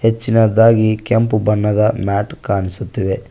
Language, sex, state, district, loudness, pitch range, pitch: Kannada, male, Karnataka, Koppal, -15 LUFS, 100-115 Hz, 110 Hz